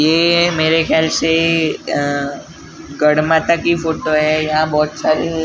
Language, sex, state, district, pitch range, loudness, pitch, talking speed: Hindi, male, Maharashtra, Gondia, 155-165 Hz, -15 LUFS, 160 Hz, 120 wpm